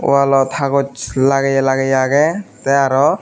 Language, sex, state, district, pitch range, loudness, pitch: Chakma, male, Tripura, Unakoti, 135-140 Hz, -15 LUFS, 135 Hz